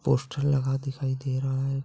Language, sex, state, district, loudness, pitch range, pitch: Hindi, male, Uttar Pradesh, Etah, -28 LUFS, 130-135 Hz, 135 Hz